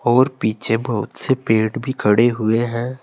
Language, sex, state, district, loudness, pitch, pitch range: Hindi, male, Uttar Pradesh, Saharanpur, -18 LUFS, 120 Hz, 110-130 Hz